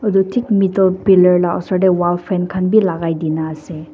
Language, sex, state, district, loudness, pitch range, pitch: Nagamese, female, Nagaland, Dimapur, -15 LUFS, 170-195 Hz, 185 Hz